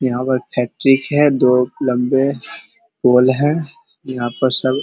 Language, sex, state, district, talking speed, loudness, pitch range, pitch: Hindi, male, Bihar, Vaishali, 110 wpm, -16 LUFS, 125-145 Hz, 130 Hz